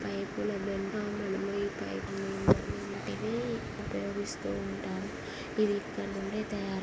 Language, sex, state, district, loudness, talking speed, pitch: Telugu, female, Andhra Pradesh, Guntur, -34 LUFS, 70 wpm, 195 Hz